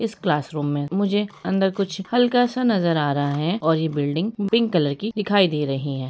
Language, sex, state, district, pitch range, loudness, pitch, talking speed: Hindi, female, Jharkhand, Sahebganj, 150-210 Hz, -22 LUFS, 185 Hz, 215 wpm